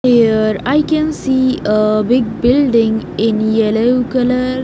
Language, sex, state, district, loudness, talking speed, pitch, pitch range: English, female, Haryana, Jhajjar, -14 LUFS, 130 wpm, 245 Hz, 220-260 Hz